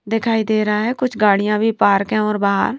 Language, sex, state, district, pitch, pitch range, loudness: Hindi, female, Punjab, Pathankot, 215 Hz, 210-225 Hz, -17 LUFS